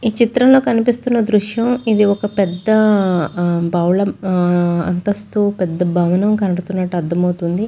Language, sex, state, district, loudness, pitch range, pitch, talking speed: Telugu, female, Andhra Pradesh, Chittoor, -16 LUFS, 175-215 Hz, 200 Hz, 100 wpm